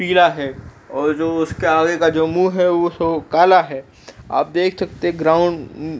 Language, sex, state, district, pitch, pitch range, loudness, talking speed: Hindi, male, Uttar Pradesh, Jalaun, 160 Hz, 145-175 Hz, -17 LUFS, 210 wpm